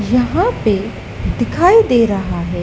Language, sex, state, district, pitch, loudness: Hindi, female, Madhya Pradesh, Dhar, 230 Hz, -15 LUFS